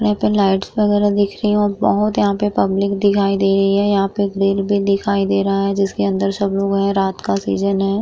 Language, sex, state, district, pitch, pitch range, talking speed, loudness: Hindi, female, Uttar Pradesh, Etah, 195 Hz, 195-200 Hz, 245 wpm, -17 LUFS